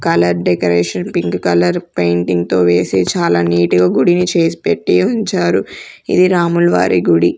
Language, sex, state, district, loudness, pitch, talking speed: Telugu, female, Andhra Pradesh, Sri Satya Sai, -14 LUFS, 90 Hz, 130 wpm